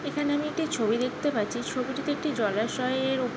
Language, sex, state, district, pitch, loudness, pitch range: Bengali, female, West Bengal, Jhargram, 260 Hz, -28 LUFS, 240-290 Hz